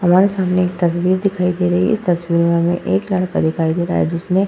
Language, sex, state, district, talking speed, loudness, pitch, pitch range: Hindi, female, Uttar Pradesh, Hamirpur, 265 wpm, -17 LUFS, 180 Hz, 170-185 Hz